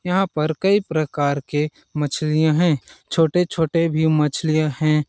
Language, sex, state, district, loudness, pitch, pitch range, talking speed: Hindi, male, Chhattisgarh, Balrampur, -20 LUFS, 155 Hz, 150-165 Hz, 155 wpm